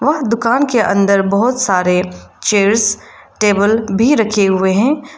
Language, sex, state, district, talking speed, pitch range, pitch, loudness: Hindi, female, Arunachal Pradesh, Lower Dibang Valley, 140 wpm, 200-240 Hz, 215 Hz, -13 LUFS